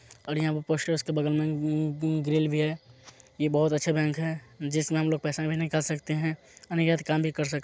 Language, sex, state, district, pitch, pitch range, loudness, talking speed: Hindi, male, Bihar, Muzaffarpur, 155 Hz, 150-160 Hz, -28 LUFS, 250 wpm